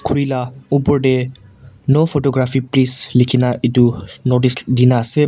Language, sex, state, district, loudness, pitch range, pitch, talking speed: Nagamese, male, Nagaland, Kohima, -16 LUFS, 125-135 Hz, 130 Hz, 135 wpm